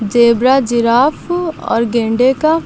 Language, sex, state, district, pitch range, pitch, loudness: Hindi, female, Uttar Pradesh, Lucknow, 235-310 Hz, 245 Hz, -13 LUFS